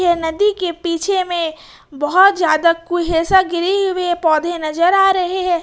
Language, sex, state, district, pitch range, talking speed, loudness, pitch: Hindi, female, Jharkhand, Ranchi, 330-370 Hz, 160 wpm, -16 LUFS, 350 Hz